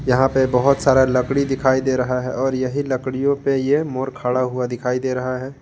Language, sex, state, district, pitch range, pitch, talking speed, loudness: Hindi, male, Jharkhand, Garhwa, 125-135 Hz, 130 Hz, 225 wpm, -19 LUFS